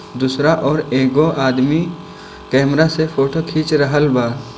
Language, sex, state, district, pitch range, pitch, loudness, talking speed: Bhojpuri, male, Bihar, Gopalganj, 130-155 Hz, 145 Hz, -16 LUFS, 130 wpm